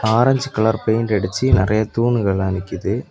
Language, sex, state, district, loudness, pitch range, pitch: Tamil, male, Tamil Nadu, Kanyakumari, -18 LUFS, 95-120 Hz, 110 Hz